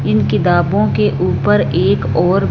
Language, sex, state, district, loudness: Hindi, female, Punjab, Fazilka, -14 LUFS